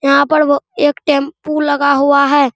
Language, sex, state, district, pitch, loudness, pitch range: Hindi, male, Bihar, Araria, 285 Hz, -13 LUFS, 280-300 Hz